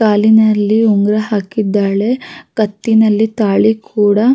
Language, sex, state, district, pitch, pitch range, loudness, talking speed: Kannada, female, Karnataka, Raichur, 215 Hz, 205-220 Hz, -13 LUFS, 70 wpm